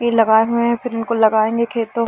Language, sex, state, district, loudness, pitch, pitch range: Hindi, female, Jharkhand, Sahebganj, -16 LUFS, 230 Hz, 225-235 Hz